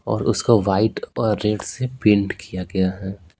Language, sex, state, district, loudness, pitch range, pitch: Hindi, male, Bihar, Patna, -21 LUFS, 95-110 Hz, 105 Hz